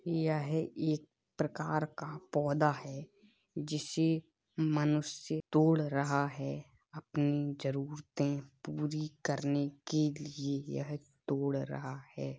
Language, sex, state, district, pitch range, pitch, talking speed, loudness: Hindi, male, Uttar Pradesh, Hamirpur, 140-155 Hz, 150 Hz, 100 wpm, -35 LUFS